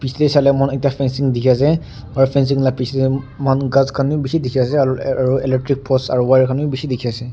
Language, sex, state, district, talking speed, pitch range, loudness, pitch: Nagamese, male, Nagaland, Dimapur, 245 wpm, 130-140 Hz, -17 LUFS, 135 Hz